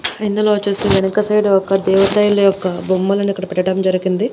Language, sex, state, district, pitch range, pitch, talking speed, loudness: Telugu, female, Andhra Pradesh, Annamaya, 190-205 Hz, 195 Hz, 155 wpm, -15 LUFS